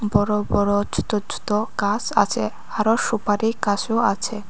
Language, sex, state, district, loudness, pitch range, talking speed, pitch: Bengali, female, Tripura, West Tripura, -22 LUFS, 205-225 Hz, 135 wpm, 210 Hz